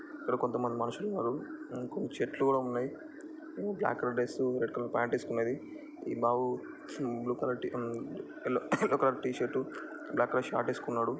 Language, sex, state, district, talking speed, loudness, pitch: Telugu, male, Andhra Pradesh, Chittoor, 135 wpm, -34 LUFS, 130 Hz